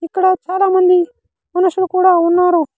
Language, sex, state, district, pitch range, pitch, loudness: Telugu, male, Andhra Pradesh, Sri Satya Sai, 350-375 Hz, 365 Hz, -14 LUFS